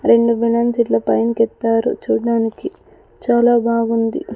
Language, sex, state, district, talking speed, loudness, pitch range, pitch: Telugu, female, Andhra Pradesh, Sri Satya Sai, 110 wpm, -16 LUFS, 230-235 Hz, 230 Hz